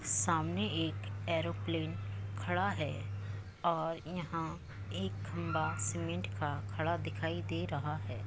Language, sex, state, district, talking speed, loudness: Hindi, female, Uttar Pradesh, Muzaffarnagar, 115 wpm, -37 LUFS